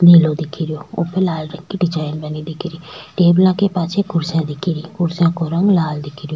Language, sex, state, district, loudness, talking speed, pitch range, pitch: Rajasthani, female, Rajasthan, Churu, -18 LUFS, 180 wpm, 155-175 Hz, 165 Hz